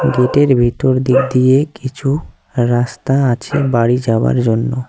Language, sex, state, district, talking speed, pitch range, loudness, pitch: Bengali, male, West Bengal, Cooch Behar, 120 wpm, 120-135 Hz, -14 LUFS, 125 Hz